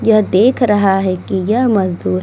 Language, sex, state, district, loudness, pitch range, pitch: Hindi, female, Uttar Pradesh, Muzaffarnagar, -14 LUFS, 185-220 Hz, 195 Hz